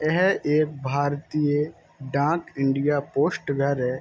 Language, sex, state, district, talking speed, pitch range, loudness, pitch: Hindi, male, Uttar Pradesh, Jalaun, 120 wpm, 140-155 Hz, -24 LUFS, 145 Hz